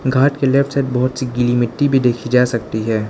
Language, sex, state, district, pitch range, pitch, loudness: Hindi, male, Arunachal Pradesh, Lower Dibang Valley, 120-135 Hz, 125 Hz, -16 LUFS